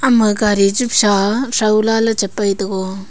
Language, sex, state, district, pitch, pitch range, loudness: Wancho, female, Arunachal Pradesh, Longding, 210 Hz, 195-225 Hz, -15 LUFS